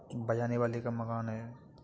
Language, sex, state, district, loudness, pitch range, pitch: Hindi, male, Uttar Pradesh, Etah, -35 LUFS, 115-120 Hz, 120 Hz